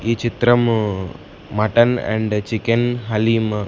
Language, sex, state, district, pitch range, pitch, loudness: Telugu, male, Andhra Pradesh, Sri Satya Sai, 105-120 Hz, 115 Hz, -18 LUFS